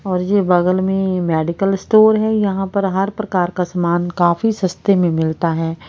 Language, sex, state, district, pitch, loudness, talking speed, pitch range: Hindi, female, Haryana, Rohtak, 185 Hz, -16 LUFS, 185 wpm, 175-195 Hz